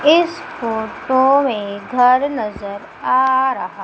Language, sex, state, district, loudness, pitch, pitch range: Hindi, female, Madhya Pradesh, Umaria, -17 LUFS, 255 Hz, 210-270 Hz